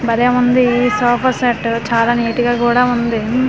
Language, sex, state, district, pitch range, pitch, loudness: Telugu, female, Andhra Pradesh, Manyam, 235-250 Hz, 240 Hz, -14 LUFS